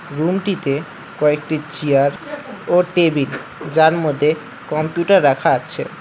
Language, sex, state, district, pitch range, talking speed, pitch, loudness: Bengali, male, West Bengal, Alipurduar, 150-180 Hz, 100 wpm, 155 Hz, -17 LUFS